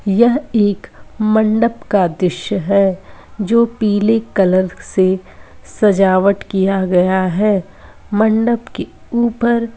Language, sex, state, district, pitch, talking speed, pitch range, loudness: Hindi, female, Uttar Pradesh, Varanasi, 205 Hz, 110 wpm, 190-225 Hz, -15 LUFS